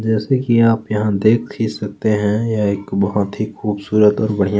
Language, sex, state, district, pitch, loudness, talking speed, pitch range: Hindi, male, Chhattisgarh, Kabirdham, 105 Hz, -17 LUFS, 210 wpm, 105-110 Hz